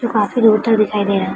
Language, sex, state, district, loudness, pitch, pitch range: Hindi, female, Bihar, Araria, -15 LUFS, 215 Hz, 205-225 Hz